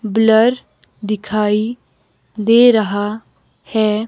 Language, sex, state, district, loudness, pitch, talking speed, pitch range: Hindi, female, Himachal Pradesh, Shimla, -15 LUFS, 215 Hz, 75 wpm, 210-225 Hz